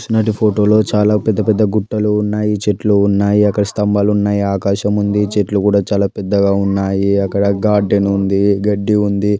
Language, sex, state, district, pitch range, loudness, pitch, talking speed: Telugu, male, Telangana, Karimnagar, 100-105 Hz, -14 LUFS, 105 Hz, 155 wpm